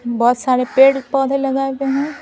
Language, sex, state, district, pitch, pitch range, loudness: Hindi, female, Bihar, Patna, 270 Hz, 255-275 Hz, -16 LUFS